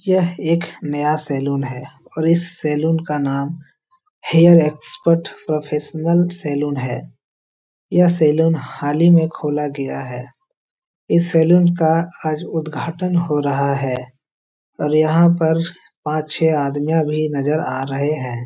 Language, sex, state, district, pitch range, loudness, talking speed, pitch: Hindi, male, Bihar, Jahanabad, 145-170 Hz, -18 LUFS, 135 wpm, 155 Hz